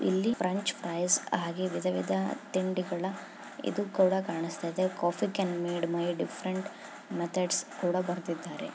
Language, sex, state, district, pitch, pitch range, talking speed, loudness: Kannada, female, Karnataka, Chamarajanagar, 180 Hz, 170-185 Hz, 125 wpm, -31 LUFS